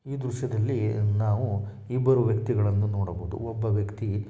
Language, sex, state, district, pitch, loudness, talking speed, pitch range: Kannada, male, Karnataka, Shimoga, 110 Hz, -27 LUFS, 125 wpm, 105-120 Hz